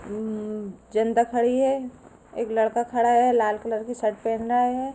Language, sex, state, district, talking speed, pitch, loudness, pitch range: Hindi, female, Uttar Pradesh, Ghazipur, 195 wpm, 230 Hz, -24 LUFS, 220-245 Hz